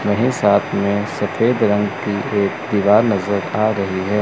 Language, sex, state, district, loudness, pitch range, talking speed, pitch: Hindi, male, Chandigarh, Chandigarh, -17 LUFS, 100-105 Hz, 170 wpm, 105 Hz